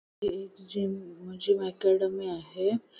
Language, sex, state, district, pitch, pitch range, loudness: Marathi, female, Maharashtra, Sindhudurg, 190 Hz, 185-200 Hz, -30 LUFS